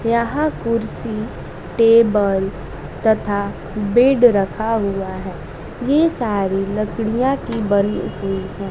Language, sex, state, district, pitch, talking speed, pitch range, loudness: Hindi, female, Bihar, West Champaran, 215 Hz, 105 wpm, 195-230 Hz, -18 LUFS